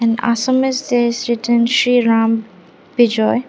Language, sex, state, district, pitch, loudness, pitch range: English, female, Assam, Kamrup Metropolitan, 235 Hz, -15 LUFS, 225-245 Hz